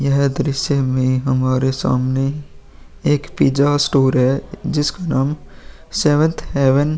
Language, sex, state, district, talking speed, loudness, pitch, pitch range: Hindi, male, Bihar, Vaishali, 120 wpm, -17 LUFS, 140 Hz, 130-150 Hz